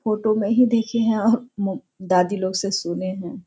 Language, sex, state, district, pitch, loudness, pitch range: Hindi, female, Bihar, Sitamarhi, 205 Hz, -21 LUFS, 185-225 Hz